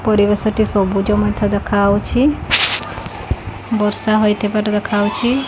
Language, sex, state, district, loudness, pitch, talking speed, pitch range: Odia, female, Odisha, Khordha, -16 LUFS, 210 Hz, 100 wpm, 205-215 Hz